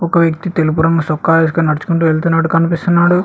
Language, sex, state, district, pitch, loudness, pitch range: Telugu, male, Telangana, Hyderabad, 165 Hz, -13 LUFS, 160-170 Hz